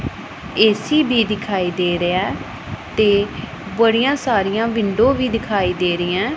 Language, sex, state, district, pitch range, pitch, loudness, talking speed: Punjabi, female, Punjab, Pathankot, 185-230 Hz, 210 Hz, -18 LUFS, 120 wpm